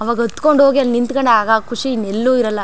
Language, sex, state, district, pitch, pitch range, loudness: Kannada, female, Karnataka, Chamarajanagar, 240 Hz, 225-260 Hz, -15 LUFS